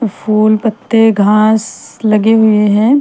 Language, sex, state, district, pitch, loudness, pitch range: Hindi, female, Bihar, Patna, 215 Hz, -11 LUFS, 210-225 Hz